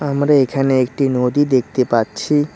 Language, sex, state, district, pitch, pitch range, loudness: Bengali, male, West Bengal, Cooch Behar, 135 Hz, 125-145 Hz, -16 LUFS